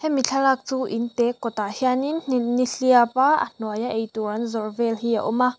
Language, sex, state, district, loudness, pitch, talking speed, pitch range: Mizo, female, Mizoram, Aizawl, -22 LUFS, 240 Hz, 225 wpm, 225-260 Hz